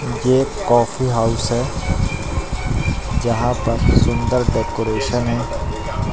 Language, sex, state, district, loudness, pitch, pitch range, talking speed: Hindi, male, Madhya Pradesh, Katni, -19 LUFS, 120 Hz, 115-125 Hz, 100 wpm